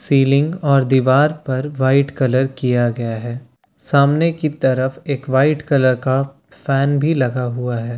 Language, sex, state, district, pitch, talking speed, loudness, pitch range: Hindi, male, Bihar, Katihar, 135 Hz, 160 wpm, -17 LUFS, 130-145 Hz